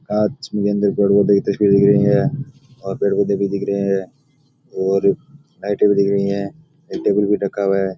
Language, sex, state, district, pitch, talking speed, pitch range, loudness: Rajasthani, male, Rajasthan, Nagaur, 100 Hz, 180 wpm, 100-130 Hz, -18 LUFS